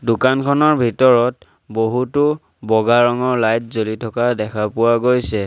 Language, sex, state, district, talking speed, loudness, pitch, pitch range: Assamese, male, Assam, Sonitpur, 120 wpm, -16 LUFS, 120 Hz, 110-125 Hz